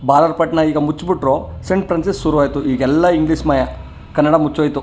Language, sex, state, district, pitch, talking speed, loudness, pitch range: Kannada, male, Karnataka, Chamarajanagar, 155 Hz, 185 wpm, -16 LUFS, 145-165 Hz